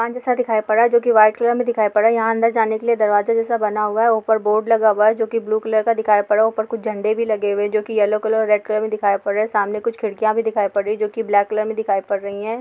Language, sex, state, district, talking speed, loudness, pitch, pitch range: Hindi, female, Bihar, Bhagalpur, 335 wpm, -18 LUFS, 220 Hz, 210-225 Hz